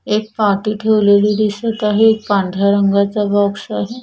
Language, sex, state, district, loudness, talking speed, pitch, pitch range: Marathi, female, Maharashtra, Washim, -15 LUFS, 150 wpm, 210 Hz, 200-215 Hz